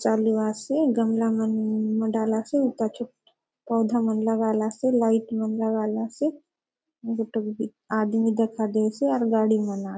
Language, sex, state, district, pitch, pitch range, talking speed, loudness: Halbi, female, Chhattisgarh, Bastar, 225 Hz, 220-230 Hz, 140 wpm, -25 LUFS